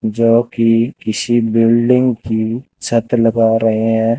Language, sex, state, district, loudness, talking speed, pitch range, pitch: Hindi, male, Rajasthan, Bikaner, -14 LUFS, 115 wpm, 110-120 Hz, 115 Hz